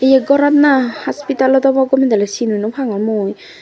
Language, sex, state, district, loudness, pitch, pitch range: Chakma, female, Tripura, Dhalai, -14 LUFS, 265 Hz, 220-280 Hz